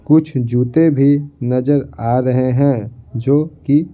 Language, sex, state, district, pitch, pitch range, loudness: Hindi, male, Bihar, Patna, 135 Hz, 125-145 Hz, -16 LUFS